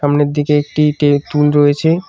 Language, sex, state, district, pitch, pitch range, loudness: Bengali, male, West Bengal, Cooch Behar, 145 Hz, 145-150 Hz, -13 LUFS